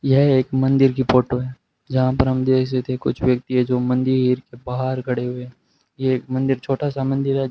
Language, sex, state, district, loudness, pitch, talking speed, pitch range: Hindi, male, Rajasthan, Bikaner, -20 LUFS, 130 Hz, 225 wpm, 125-135 Hz